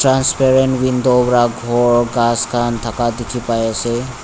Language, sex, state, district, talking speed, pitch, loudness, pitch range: Nagamese, male, Nagaland, Dimapur, 140 wpm, 120 Hz, -15 LUFS, 120-130 Hz